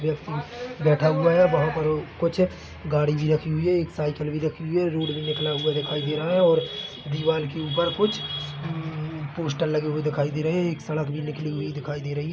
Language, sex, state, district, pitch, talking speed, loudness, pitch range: Hindi, male, Chhattisgarh, Bilaspur, 155 Hz, 230 wpm, -25 LUFS, 150-165 Hz